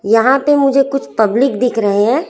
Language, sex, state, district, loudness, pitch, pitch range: Hindi, female, Chhattisgarh, Raipur, -13 LUFS, 255 Hz, 225-275 Hz